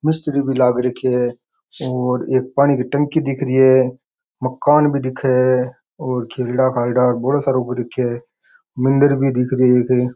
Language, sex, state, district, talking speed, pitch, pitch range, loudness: Rajasthani, male, Rajasthan, Churu, 175 wpm, 130 Hz, 125-135 Hz, -17 LUFS